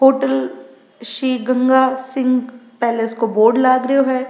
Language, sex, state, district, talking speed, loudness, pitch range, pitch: Rajasthani, female, Rajasthan, Nagaur, 140 wpm, -16 LUFS, 230-260 Hz, 255 Hz